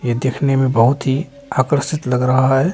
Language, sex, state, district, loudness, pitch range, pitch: Hindi, male, Haryana, Charkhi Dadri, -17 LUFS, 130-140 Hz, 135 Hz